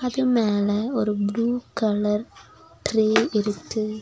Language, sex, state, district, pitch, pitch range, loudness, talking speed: Tamil, female, Tamil Nadu, Nilgiris, 215 Hz, 210-235 Hz, -23 LUFS, 105 wpm